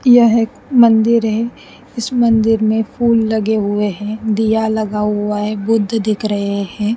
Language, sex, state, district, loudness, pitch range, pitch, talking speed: Hindi, female, Haryana, Rohtak, -15 LUFS, 210-230 Hz, 220 Hz, 165 wpm